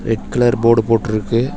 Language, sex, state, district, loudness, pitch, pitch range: Tamil, male, Tamil Nadu, Chennai, -16 LUFS, 115 Hz, 115-120 Hz